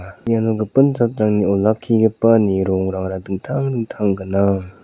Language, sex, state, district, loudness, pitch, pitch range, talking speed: Garo, male, Meghalaya, South Garo Hills, -18 LUFS, 105 Hz, 95-115 Hz, 100 wpm